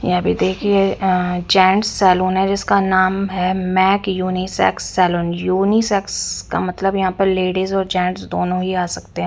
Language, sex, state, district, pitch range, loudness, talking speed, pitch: Hindi, female, Punjab, Fazilka, 180-195 Hz, -17 LUFS, 170 wpm, 185 Hz